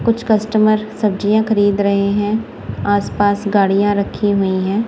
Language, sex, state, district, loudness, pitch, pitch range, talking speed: Hindi, female, Punjab, Kapurthala, -16 LUFS, 205 Hz, 200-215 Hz, 135 wpm